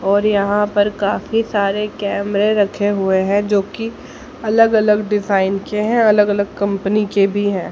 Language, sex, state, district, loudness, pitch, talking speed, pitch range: Hindi, male, Haryana, Charkhi Dadri, -16 LUFS, 205 Hz, 165 wpm, 200-210 Hz